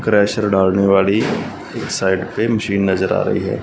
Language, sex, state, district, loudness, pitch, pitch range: Hindi, male, Punjab, Fazilka, -17 LUFS, 100 Hz, 95-105 Hz